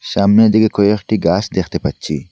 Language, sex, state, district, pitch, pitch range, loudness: Bengali, male, Assam, Hailakandi, 100 Hz, 90-110 Hz, -14 LUFS